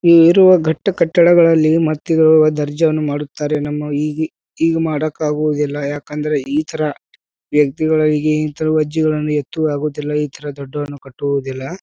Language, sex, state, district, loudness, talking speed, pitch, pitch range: Kannada, male, Karnataka, Bijapur, -16 LUFS, 145 wpm, 150 Hz, 150-160 Hz